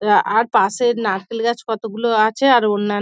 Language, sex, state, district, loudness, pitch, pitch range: Bengali, female, West Bengal, Dakshin Dinajpur, -17 LUFS, 225 Hz, 210-235 Hz